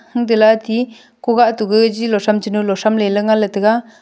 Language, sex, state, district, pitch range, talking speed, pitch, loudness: Wancho, female, Arunachal Pradesh, Longding, 210-230 Hz, 150 wpm, 220 Hz, -15 LUFS